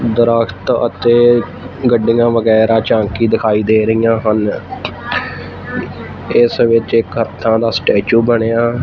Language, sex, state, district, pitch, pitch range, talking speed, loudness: Punjabi, male, Punjab, Fazilka, 115 Hz, 110-120 Hz, 100 wpm, -13 LUFS